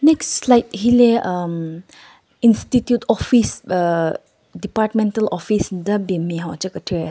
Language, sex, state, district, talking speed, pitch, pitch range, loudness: Rengma, female, Nagaland, Kohima, 125 wpm, 205 Hz, 175-235 Hz, -18 LUFS